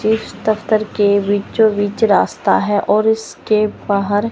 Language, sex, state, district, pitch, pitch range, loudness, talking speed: Hindi, male, Chandigarh, Chandigarh, 210 Hz, 205-220 Hz, -16 LUFS, 140 wpm